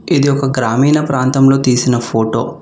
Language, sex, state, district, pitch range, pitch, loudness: Telugu, male, Telangana, Hyderabad, 125-140 Hz, 130 Hz, -13 LUFS